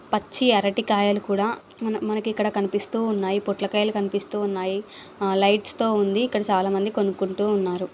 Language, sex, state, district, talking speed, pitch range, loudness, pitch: Telugu, female, Andhra Pradesh, Visakhapatnam, 130 wpm, 195-215 Hz, -23 LUFS, 205 Hz